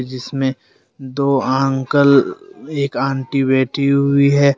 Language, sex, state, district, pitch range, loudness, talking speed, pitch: Hindi, male, Jharkhand, Deoghar, 130-140 Hz, -16 LUFS, 105 wpm, 135 Hz